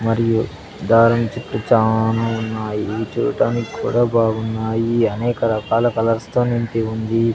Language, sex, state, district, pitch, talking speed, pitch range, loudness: Telugu, male, Andhra Pradesh, Sri Satya Sai, 115 Hz, 115 wpm, 110-115 Hz, -19 LUFS